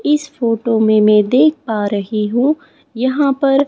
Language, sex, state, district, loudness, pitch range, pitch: Hindi, female, Chhattisgarh, Raipur, -15 LUFS, 215-285 Hz, 255 Hz